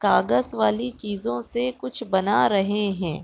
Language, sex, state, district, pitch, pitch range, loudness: Hindi, female, Chhattisgarh, Raigarh, 200 Hz, 160-230 Hz, -23 LUFS